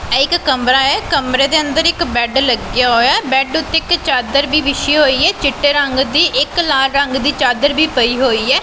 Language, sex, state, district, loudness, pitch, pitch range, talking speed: Punjabi, female, Punjab, Pathankot, -13 LUFS, 275 Hz, 260-305 Hz, 220 wpm